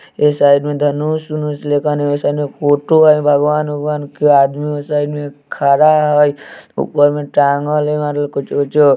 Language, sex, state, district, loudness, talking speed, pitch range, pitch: Bajjika, male, Bihar, Vaishali, -14 LUFS, 165 wpm, 145-150 Hz, 145 Hz